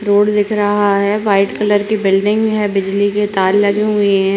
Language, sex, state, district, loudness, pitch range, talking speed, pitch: Hindi, female, Uttarakhand, Uttarkashi, -14 LUFS, 200-210 Hz, 205 wpm, 205 Hz